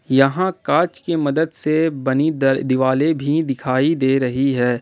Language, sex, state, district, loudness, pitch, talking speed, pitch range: Hindi, male, Jharkhand, Ranchi, -18 LUFS, 140 Hz, 160 wpm, 130-160 Hz